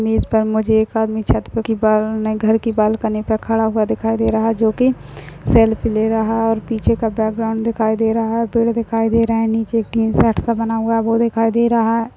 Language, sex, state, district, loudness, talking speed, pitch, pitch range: Hindi, female, Chhattisgarh, Bastar, -17 LUFS, 245 wpm, 225 Hz, 220-225 Hz